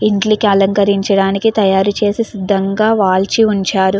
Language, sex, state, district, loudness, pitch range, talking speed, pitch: Telugu, female, Andhra Pradesh, Chittoor, -13 LUFS, 195-215 Hz, 90 wpm, 200 Hz